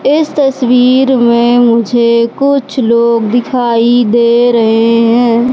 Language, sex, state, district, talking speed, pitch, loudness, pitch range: Hindi, female, Madhya Pradesh, Katni, 110 wpm, 240 Hz, -9 LUFS, 235-250 Hz